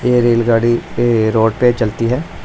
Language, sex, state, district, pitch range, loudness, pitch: Hindi, male, Punjab, Pathankot, 115-120 Hz, -14 LUFS, 120 Hz